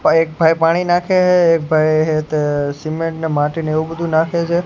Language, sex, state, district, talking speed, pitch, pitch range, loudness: Gujarati, male, Gujarat, Gandhinagar, 230 wpm, 160 Hz, 155-170 Hz, -16 LUFS